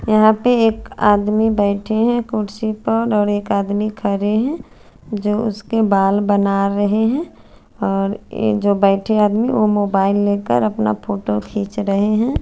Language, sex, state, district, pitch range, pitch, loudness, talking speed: Hindi, female, Chandigarh, Chandigarh, 200-220 Hz, 210 Hz, -17 LUFS, 165 wpm